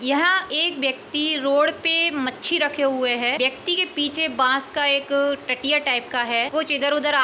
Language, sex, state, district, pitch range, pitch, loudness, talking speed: Hindi, female, Uttar Pradesh, Etah, 265-310 Hz, 285 Hz, -21 LUFS, 200 wpm